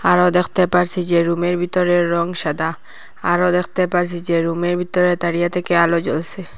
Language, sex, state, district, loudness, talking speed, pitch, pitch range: Bengali, female, Assam, Hailakandi, -17 LUFS, 175 wpm, 175 Hz, 170-180 Hz